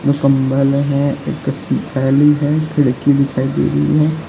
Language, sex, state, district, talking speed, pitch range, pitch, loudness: Hindi, male, Uttar Pradesh, Lalitpur, 155 wpm, 135-145 Hz, 140 Hz, -15 LUFS